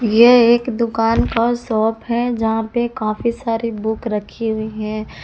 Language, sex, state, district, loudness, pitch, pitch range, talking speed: Hindi, female, Jharkhand, Palamu, -17 LUFS, 225 Hz, 220-235 Hz, 150 wpm